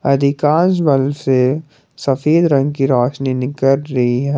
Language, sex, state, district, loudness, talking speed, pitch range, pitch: Hindi, male, Jharkhand, Garhwa, -15 LUFS, 135 wpm, 135-150 Hz, 140 Hz